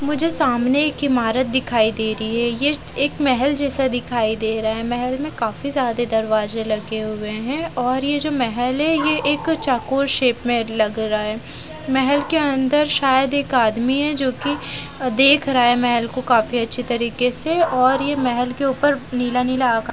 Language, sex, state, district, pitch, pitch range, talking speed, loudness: Hindi, female, Haryana, Jhajjar, 255 Hz, 235-280 Hz, 195 wpm, -18 LUFS